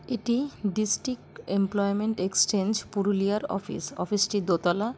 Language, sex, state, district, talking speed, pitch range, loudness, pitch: Bengali, female, West Bengal, Purulia, 110 wpm, 195-220 Hz, -27 LUFS, 205 Hz